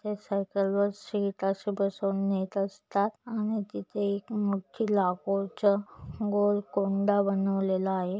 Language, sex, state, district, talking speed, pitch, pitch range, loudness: Marathi, female, Maharashtra, Solapur, 115 wpm, 200 Hz, 195-205 Hz, -29 LUFS